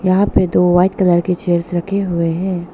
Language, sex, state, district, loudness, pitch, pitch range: Hindi, female, Arunachal Pradesh, Papum Pare, -15 LUFS, 180 Hz, 175-185 Hz